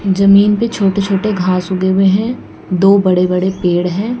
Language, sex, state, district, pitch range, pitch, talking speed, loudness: Hindi, female, Haryana, Jhajjar, 185-200 Hz, 195 Hz, 185 wpm, -13 LUFS